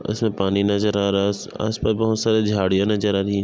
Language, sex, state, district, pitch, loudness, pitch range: Hindi, male, Jharkhand, Sahebganj, 100 Hz, -21 LUFS, 100-110 Hz